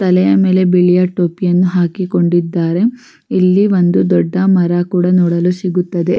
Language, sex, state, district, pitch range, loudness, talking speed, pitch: Kannada, female, Karnataka, Raichur, 175-185 Hz, -13 LUFS, 125 wpm, 180 Hz